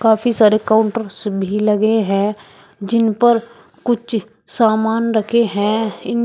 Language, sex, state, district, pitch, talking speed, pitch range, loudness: Hindi, female, Uttar Pradesh, Shamli, 220 Hz, 125 wpm, 210-230 Hz, -16 LUFS